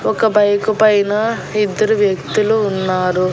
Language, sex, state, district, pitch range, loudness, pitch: Telugu, female, Andhra Pradesh, Annamaya, 190-215 Hz, -15 LUFS, 210 Hz